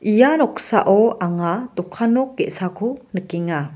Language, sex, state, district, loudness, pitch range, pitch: Garo, female, Meghalaya, West Garo Hills, -19 LUFS, 175-245 Hz, 200 Hz